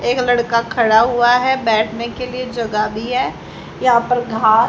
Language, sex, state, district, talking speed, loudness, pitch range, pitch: Hindi, female, Haryana, Rohtak, 180 wpm, -16 LUFS, 225-245 Hz, 235 Hz